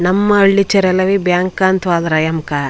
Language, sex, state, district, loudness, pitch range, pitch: Kannada, female, Karnataka, Chamarajanagar, -13 LUFS, 170-195 Hz, 185 Hz